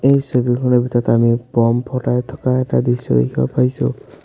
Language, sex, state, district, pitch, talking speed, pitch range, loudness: Assamese, male, Assam, Sonitpur, 120 Hz, 155 wpm, 115-125 Hz, -17 LUFS